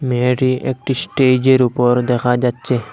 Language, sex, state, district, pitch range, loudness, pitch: Bengali, male, Assam, Hailakandi, 125-130 Hz, -16 LUFS, 125 Hz